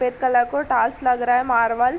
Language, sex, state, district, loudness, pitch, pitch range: Hindi, female, Uttar Pradesh, Varanasi, -19 LUFS, 245 Hz, 240-255 Hz